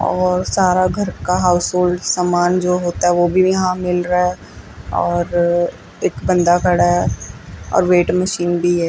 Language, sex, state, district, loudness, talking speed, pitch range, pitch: Hindi, female, Chandigarh, Chandigarh, -16 LUFS, 170 wpm, 175-180 Hz, 180 Hz